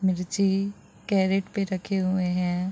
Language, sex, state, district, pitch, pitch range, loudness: Hindi, female, Chhattisgarh, Bilaspur, 190 Hz, 185-195 Hz, -26 LUFS